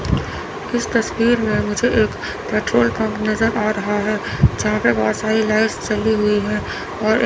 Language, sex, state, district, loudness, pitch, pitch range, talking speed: Hindi, male, Chandigarh, Chandigarh, -19 LUFS, 215 Hz, 205-220 Hz, 165 wpm